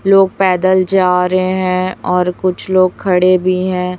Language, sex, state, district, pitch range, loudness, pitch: Hindi, female, Chhattisgarh, Raipur, 180-185 Hz, -13 LUFS, 185 Hz